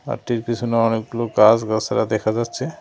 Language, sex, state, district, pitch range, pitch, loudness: Bengali, male, West Bengal, Cooch Behar, 110-120 Hz, 115 Hz, -19 LUFS